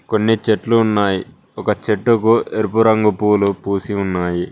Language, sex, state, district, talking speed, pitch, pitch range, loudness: Telugu, male, Telangana, Mahabubabad, 135 wpm, 105 Hz, 100-110 Hz, -17 LUFS